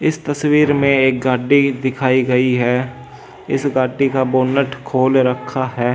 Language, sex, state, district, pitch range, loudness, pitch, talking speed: Hindi, male, Delhi, New Delhi, 130-140 Hz, -16 LUFS, 130 Hz, 150 wpm